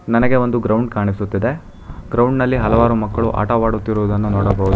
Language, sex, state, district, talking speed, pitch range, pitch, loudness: Kannada, male, Karnataka, Bangalore, 125 wpm, 100-120 Hz, 110 Hz, -17 LUFS